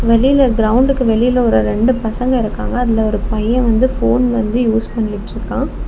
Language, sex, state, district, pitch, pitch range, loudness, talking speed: Tamil, female, Tamil Nadu, Kanyakumari, 230 Hz, 220-250 Hz, -15 LUFS, 155 wpm